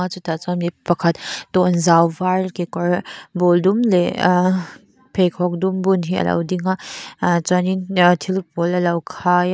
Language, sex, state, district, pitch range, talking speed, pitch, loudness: Mizo, female, Mizoram, Aizawl, 175-185 Hz, 170 wpm, 180 Hz, -18 LUFS